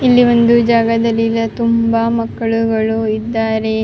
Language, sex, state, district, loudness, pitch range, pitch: Kannada, female, Karnataka, Raichur, -14 LUFS, 225-230 Hz, 230 Hz